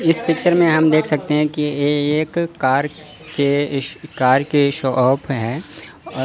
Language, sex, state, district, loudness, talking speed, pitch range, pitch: Hindi, male, Chandigarh, Chandigarh, -18 LUFS, 165 wpm, 135-155 Hz, 150 Hz